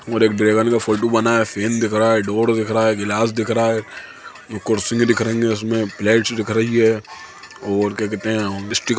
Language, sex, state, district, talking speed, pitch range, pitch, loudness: Hindi, male, Chhattisgarh, Sukma, 245 wpm, 110-115 Hz, 110 Hz, -18 LUFS